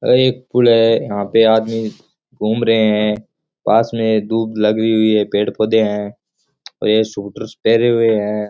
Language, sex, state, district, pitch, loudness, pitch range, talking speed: Rajasthani, male, Rajasthan, Churu, 110 Hz, -15 LUFS, 105-115 Hz, 185 wpm